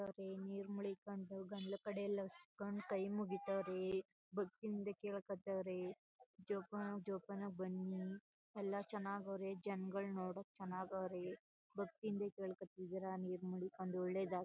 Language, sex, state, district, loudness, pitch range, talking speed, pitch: Kannada, female, Karnataka, Chamarajanagar, -46 LUFS, 190-200 Hz, 110 wpm, 195 Hz